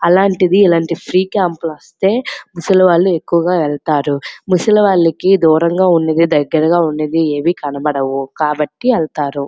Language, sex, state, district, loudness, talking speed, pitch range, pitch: Telugu, female, Andhra Pradesh, Srikakulam, -14 LUFS, 100 wpm, 150-185 Hz, 165 Hz